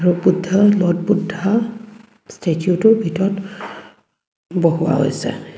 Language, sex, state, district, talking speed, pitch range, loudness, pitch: Assamese, female, Assam, Kamrup Metropolitan, 85 wpm, 180-215 Hz, -17 LUFS, 195 Hz